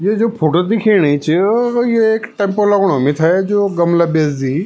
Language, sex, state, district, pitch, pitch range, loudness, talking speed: Garhwali, male, Uttarakhand, Tehri Garhwal, 195 Hz, 160-220 Hz, -14 LUFS, 180 wpm